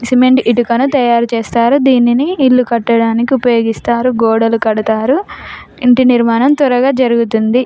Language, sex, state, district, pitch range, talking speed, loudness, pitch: Telugu, female, Telangana, Nalgonda, 230-255 Hz, 110 wpm, -11 LUFS, 240 Hz